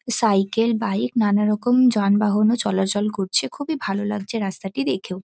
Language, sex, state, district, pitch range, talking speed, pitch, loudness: Bengali, female, West Bengal, North 24 Parganas, 195-230 Hz, 125 wpm, 210 Hz, -21 LUFS